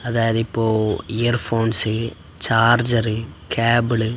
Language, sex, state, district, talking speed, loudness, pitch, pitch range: Malayalam, male, Kerala, Kasaragod, 70 wpm, -19 LUFS, 115 Hz, 110-120 Hz